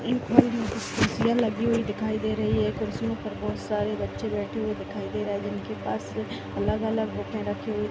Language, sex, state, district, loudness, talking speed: Hindi, female, Bihar, Madhepura, -27 LUFS, 220 wpm